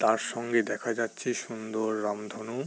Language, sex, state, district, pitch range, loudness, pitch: Bengali, male, West Bengal, Jalpaiguri, 110-115 Hz, -31 LUFS, 115 Hz